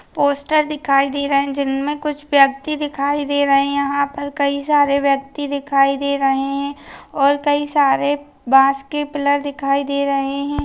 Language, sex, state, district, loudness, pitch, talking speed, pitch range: Hindi, female, Bihar, Bhagalpur, -18 LUFS, 280 Hz, 170 wpm, 275-290 Hz